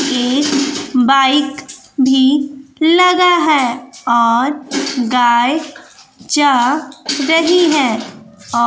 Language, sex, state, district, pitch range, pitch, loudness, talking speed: Hindi, female, Bihar, West Champaran, 250-300 Hz, 275 Hz, -13 LUFS, 75 wpm